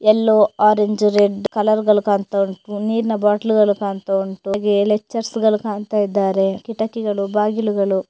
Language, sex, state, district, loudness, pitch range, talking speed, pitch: Kannada, female, Karnataka, Dakshina Kannada, -18 LUFS, 200-215 Hz, 125 wpm, 210 Hz